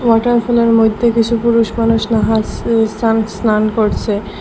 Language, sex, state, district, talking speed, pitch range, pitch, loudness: Bengali, female, Assam, Hailakandi, 135 wpm, 215-230 Hz, 225 Hz, -14 LUFS